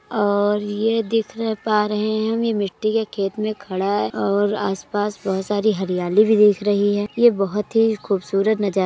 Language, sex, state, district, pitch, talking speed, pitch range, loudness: Hindi, female, Uttar Pradesh, Budaun, 205 Hz, 195 wpm, 200-215 Hz, -20 LUFS